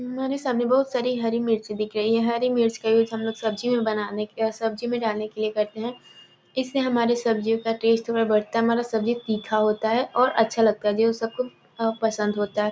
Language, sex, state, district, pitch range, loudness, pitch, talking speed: Hindi, female, Bihar, Gopalganj, 215-240 Hz, -24 LUFS, 225 Hz, 215 wpm